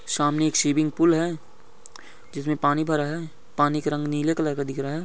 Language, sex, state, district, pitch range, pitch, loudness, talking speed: Hindi, male, Goa, North and South Goa, 145-160 Hz, 150 Hz, -24 LUFS, 215 wpm